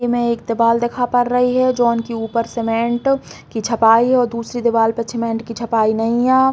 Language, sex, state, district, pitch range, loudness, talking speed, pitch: Bundeli, female, Uttar Pradesh, Hamirpur, 230-245 Hz, -17 LUFS, 220 wpm, 235 Hz